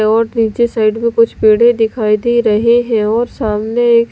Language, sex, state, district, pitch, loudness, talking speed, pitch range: Hindi, female, Delhi, New Delhi, 230 Hz, -13 LUFS, 190 wpm, 220-235 Hz